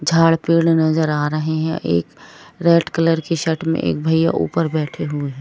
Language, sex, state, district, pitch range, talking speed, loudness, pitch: Hindi, female, Jharkhand, Jamtara, 155-165 Hz, 200 wpm, -18 LUFS, 160 Hz